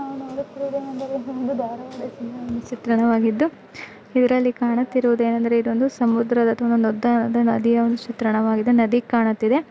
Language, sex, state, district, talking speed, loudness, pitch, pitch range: Kannada, female, Karnataka, Dharwad, 105 wpm, -21 LUFS, 240 Hz, 230-255 Hz